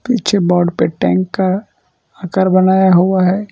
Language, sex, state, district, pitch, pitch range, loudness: Hindi, male, Gujarat, Valsad, 185 Hz, 180-190 Hz, -13 LUFS